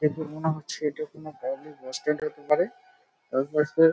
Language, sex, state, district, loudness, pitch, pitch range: Bengali, male, West Bengal, Dakshin Dinajpur, -29 LUFS, 155 Hz, 150-155 Hz